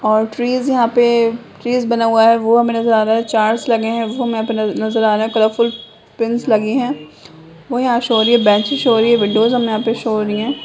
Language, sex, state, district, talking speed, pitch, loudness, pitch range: Hindi, female, Jharkhand, Sahebganj, 275 wpm, 230 Hz, -15 LUFS, 220-235 Hz